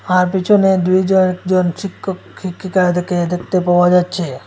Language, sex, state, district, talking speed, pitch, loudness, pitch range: Bengali, male, Assam, Hailakandi, 135 wpm, 185 Hz, -15 LUFS, 180-190 Hz